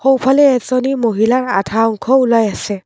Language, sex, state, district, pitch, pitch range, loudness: Assamese, female, Assam, Kamrup Metropolitan, 245 Hz, 220-260 Hz, -14 LUFS